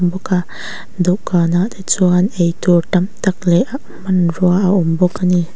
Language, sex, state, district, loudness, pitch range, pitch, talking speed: Mizo, female, Mizoram, Aizawl, -15 LUFS, 175-190 Hz, 180 Hz, 170 wpm